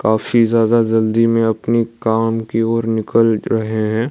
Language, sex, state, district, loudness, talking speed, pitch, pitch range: Hindi, male, Odisha, Malkangiri, -16 LUFS, 160 wpm, 115 Hz, 110-115 Hz